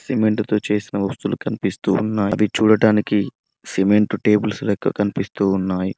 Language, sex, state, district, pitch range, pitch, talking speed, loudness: Telugu, male, Telangana, Mahabubabad, 100-110 Hz, 105 Hz, 130 wpm, -19 LUFS